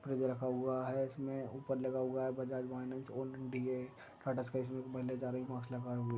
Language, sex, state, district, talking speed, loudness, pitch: Hindi, male, Maharashtra, Aurangabad, 115 wpm, -40 LUFS, 130 Hz